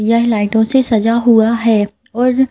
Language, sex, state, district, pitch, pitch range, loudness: Hindi, female, Madhya Pradesh, Bhopal, 230 Hz, 220-245 Hz, -13 LUFS